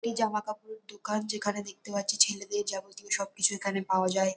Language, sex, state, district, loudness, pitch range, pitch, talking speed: Bengali, female, West Bengal, North 24 Parganas, -30 LUFS, 195-210 Hz, 205 Hz, 165 wpm